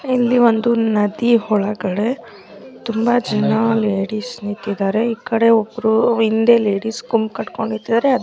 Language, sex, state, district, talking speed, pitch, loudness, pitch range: Kannada, female, Karnataka, Bellary, 110 wpm, 225 Hz, -17 LUFS, 210-235 Hz